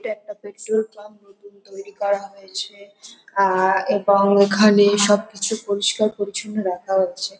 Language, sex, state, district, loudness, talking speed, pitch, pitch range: Bengali, female, West Bengal, North 24 Parganas, -19 LUFS, 130 wpm, 200 Hz, 195-210 Hz